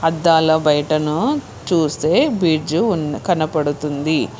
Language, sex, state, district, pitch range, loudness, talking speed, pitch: Telugu, female, Telangana, Hyderabad, 150-165 Hz, -17 LUFS, 70 wpm, 155 Hz